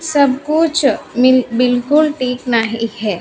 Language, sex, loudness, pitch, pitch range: Hindi, female, -15 LUFS, 255 Hz, 230-285 Hz